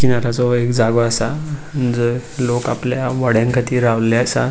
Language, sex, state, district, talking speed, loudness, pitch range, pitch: Konkani, male, Goa, North and South Goa, 160 wpm, -17 LUFS, 120-125 Hz, 120 Hz